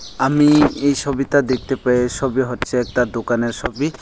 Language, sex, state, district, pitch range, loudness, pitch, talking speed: Bengali, male, Tripura, Unakoti, 125-140 Hz, -18 LUFS, 130 Hz, 150 wpm